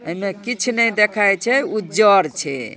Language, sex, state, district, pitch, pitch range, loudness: Maithili, male, Bihar, Darbhanga, 205 Hz, 190-230 Hz, -17 LUFS